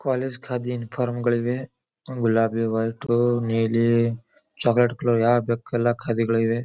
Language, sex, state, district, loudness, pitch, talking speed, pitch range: Kannada, male, Karnataka, Bijapur, -23 LUFS, 120 Hz, 115 wpm, 115-125 Hz